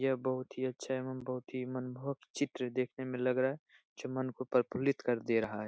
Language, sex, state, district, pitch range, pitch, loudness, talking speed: Hindi, male, Bihar, Jahanabad, 125-130 Hz, 130 Hz, -36 LUFS, 235 wpm